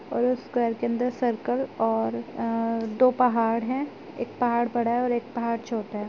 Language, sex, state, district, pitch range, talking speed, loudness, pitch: Hindi, female, Uttar Pradesh, Jyotiba Phule Nagar, 230-245 Hz, 195 wpm, -26 LUFS, 235 Hz